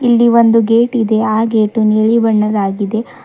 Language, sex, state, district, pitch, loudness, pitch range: Kannada, female, Karnataka, Bidar, 225 Hz, -12 LUFS, 215-230 Hz